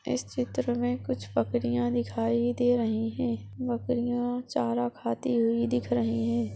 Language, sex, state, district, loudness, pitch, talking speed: Hindi, female, Maharashtra, Aurangabad, -29 LUFS, 120 Hz, 135 wpm